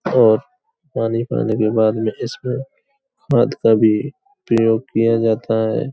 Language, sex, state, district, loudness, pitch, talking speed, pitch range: Hindi, male, Uttar Pradesh, Hamirpur, -18 LUFS, 115 Hz, 130 wpm, 110-140 Hz